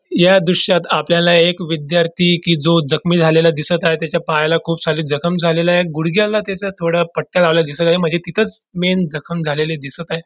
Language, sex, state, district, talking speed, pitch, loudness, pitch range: Marathi, male, Maharashtra, Dhule, 185 wpm, 170 Hz, -15 LUFS, 165-175 Hz